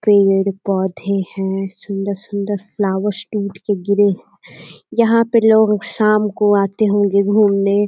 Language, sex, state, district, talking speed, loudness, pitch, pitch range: Hindi, female, Uttar Pradesh, Deoria, 130 wpm, -16 LUFS, 200 Hz, 195-210 Hz